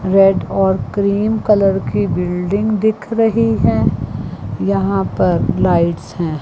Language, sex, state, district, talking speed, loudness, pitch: Hindi, female, Chandigarh, Chandigarh, 120 wpm, -16 LUFS, 180 Hz